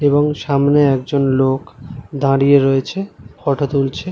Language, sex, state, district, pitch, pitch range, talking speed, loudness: Bengali, male, West Bengal, Malda, 140 Hz, 135-145 Hz, 130 wpm, -16 LUFS